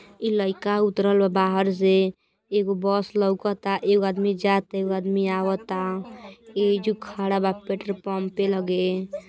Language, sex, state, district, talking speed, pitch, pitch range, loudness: Bhojpuri, female, Uttar Pradesh, Gorakhpur, 130 wpm, 195 Hz, 190-200 Hz, -24 LUFS